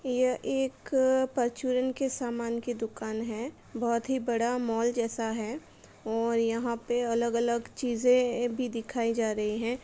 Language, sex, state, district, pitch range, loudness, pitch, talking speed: Hindi, female, Uttar Pradesh, Etah, 230-250 Hz, -30 LUFS, 235 Hz, 145 wpm